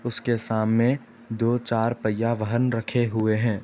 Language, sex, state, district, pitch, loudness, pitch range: Hindi, male, Uttar Pradesh, Etah, 115 Hz, -24 LUFS, 110-120 Hz